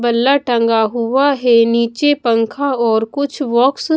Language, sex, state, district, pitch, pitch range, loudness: Hindi, female, Bihar, Katihar, 240 Hz, 230-280 Hz, -15 LUFS